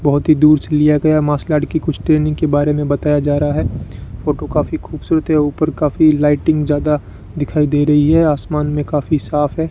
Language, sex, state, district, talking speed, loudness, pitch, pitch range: Hindi, male, Rajasthan, Bikaner, 215 wpm, -15 LUFS, 150 Hz, 145-155 Hz